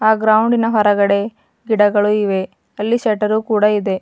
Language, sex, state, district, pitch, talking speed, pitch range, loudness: Kannada, female, Karnataka, Bidar, 210 Hz, 135 wpm, 205-220 Hz, -15 LUFS